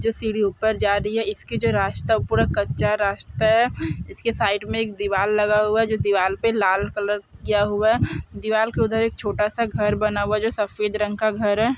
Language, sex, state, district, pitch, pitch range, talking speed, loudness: Hindi, female, Bihar, Saran, 210 Hz, 205-220 Hz, 235 wpm, -22 LUFS